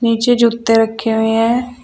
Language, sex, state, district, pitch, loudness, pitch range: Hindi, female, Uttar Pradesh, Shamli, 230 Hz, -14 LUFS, 225-240 Hz